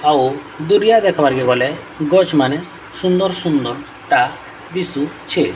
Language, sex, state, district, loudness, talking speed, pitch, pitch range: Odia, female, Odisha, Sambalpur, -16 LUFS, 120 wpm, 155 Hz, 145-185 Hz